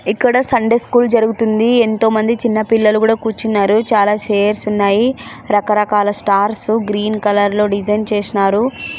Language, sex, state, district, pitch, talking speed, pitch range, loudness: Telugu, female, Andhra Pradesh, Anantapur, 215 Hz, 135 wpm, 205-225 Hz, -14 LUFS